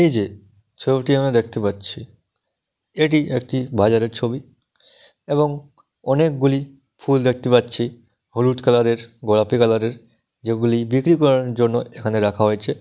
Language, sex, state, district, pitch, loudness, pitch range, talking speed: Bengali, male, West Bengal, Dakshin Dinajpur, 120 Hz, -19 LUFS, 115-135 Hz, 150 wpm